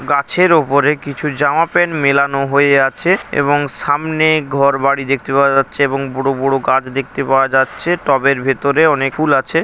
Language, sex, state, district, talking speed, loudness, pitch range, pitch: Bengali, male, West Bengal, Paschim Medinipur, 170 wpm, -14 LUFS, 135-150 Hz, 140 Hz